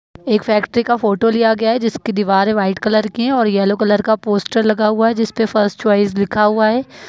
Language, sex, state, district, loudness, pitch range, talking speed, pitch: Hindi, female, Bihar, Jahanabad, -15 LUFS, 205-225 Hz, 230 wpm, 215 Hz